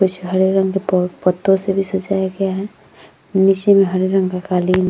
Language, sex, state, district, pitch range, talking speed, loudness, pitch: Hindi, female, Uttar Pradesh, Jyotiba Phule Nagar, 185-195 Hz, 210 wpm, -17 LUFS, 190 Hz